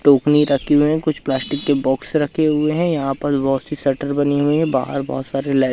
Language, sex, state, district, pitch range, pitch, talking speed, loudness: Hindi, male, Madhya Pradesh, Katni, 135-150 Hz, 145 Hz, 250 wpm, -18 LUFS